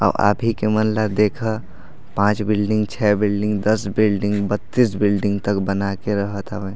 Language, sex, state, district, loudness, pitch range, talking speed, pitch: Chhattisgarhi, male, Chhattisgarh, Raigarh, -20 LUFS, 100-110 Hz, 170 wpm, 105 Hz